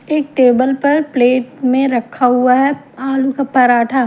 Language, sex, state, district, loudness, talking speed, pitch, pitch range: Hindi, female, Haryana, Jhajjar, -14 LUFS, 160 wpm, 260 Hz, 250-275 Hz